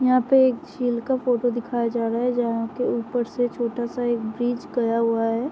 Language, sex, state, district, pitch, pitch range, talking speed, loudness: Hindi, female, Uttar Pradesh, Varanasi, 240 Hz, 235-245 Hz, 230 wpm, -23 LUFS